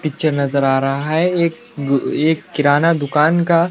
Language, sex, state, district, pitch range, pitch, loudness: Hindi, male, Maharashtra, Washim, 140-165 Hz, 155 Hz, -16 LUFS